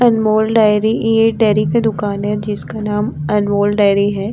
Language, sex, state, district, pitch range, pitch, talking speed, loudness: Hindi, female, Bihar, Vaishali, 205-220 Hz, 210 Hz, 180 wpm, -15 LUFS